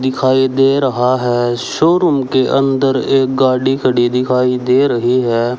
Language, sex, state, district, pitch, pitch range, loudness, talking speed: Hindi, male, Haryana, Rohtak, 130 Hz, 125-135 Hz, -13 LUFS, 150 wpm